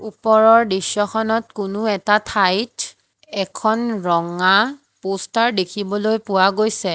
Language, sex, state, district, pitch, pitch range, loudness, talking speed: Assamese, female, Assam, Hailakandi, 210 Hz, 195-220 Hz, -18 LUFS, 95 wpm